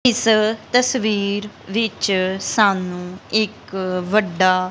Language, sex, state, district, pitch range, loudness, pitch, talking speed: Punjabi, female, Punjab, Kapurthala, 185-220 Hz, -19 LUFS, 205 Hz, 75 wpm